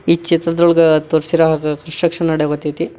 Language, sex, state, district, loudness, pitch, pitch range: Kannada, male, Karnataka, Koppal, -15 LUFS, 160 Hz, 155-170 Hz